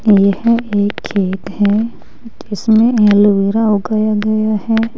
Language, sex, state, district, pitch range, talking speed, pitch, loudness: Hindi, female, Uttar Pradesh, Saharanpur, 205-225 Hz, 110 wpm, 215 Hz, -14 LUFS